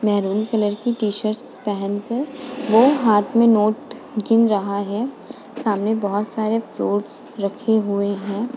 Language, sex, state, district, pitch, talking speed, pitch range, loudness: Hindi, female, Uttar Pradesh, Muzaffarnagar, 215 Hz, 135 wpm, 205-230 Hz, -20 LUFS